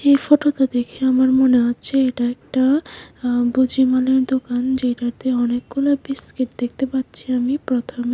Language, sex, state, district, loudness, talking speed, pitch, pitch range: Bengali, female, Tripura, West Tripura, -19 LUFS, 140 wpm, 260 Hz, 245-265 Hz